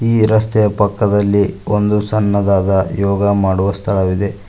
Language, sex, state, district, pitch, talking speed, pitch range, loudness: Kannada, male, Karnataka, Koppal, 100 Hz, 105 wpm, 100-105 Hz, -15 LUFS